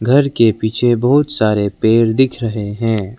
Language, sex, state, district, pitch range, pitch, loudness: Hindi, male, Arunachal Pradesh, Lower Dibang Valley, 110-125 Hz, 115 Hz, -15 LUFS